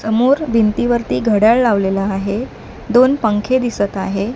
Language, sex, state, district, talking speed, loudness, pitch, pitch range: Marathi, female, Maharashtra, Mumbai Suburban, 125 wpm, -15 LUFS, 225 Hz, 200-245 Hz